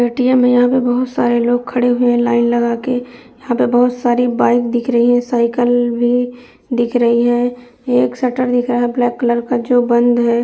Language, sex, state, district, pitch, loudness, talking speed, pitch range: Hindi, female, Uttar Pradesh, Jyotiba Phule Nagar, 245 Hz, -15 LUFS, 220 wpm, 240-245 Hz